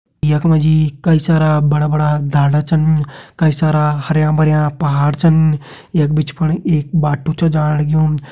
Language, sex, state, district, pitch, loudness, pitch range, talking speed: Hindi, male, Uttarakhand, Uttarkashi, 155 Hz, -14 LUFS, 150-160 Hz, 165 wpm